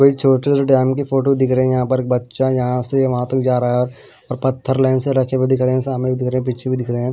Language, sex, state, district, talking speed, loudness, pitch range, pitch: Hindi, male, Punjab, Pathankot, 310 wpm, -17 LUFS, 125-135 Hz, 130 Hz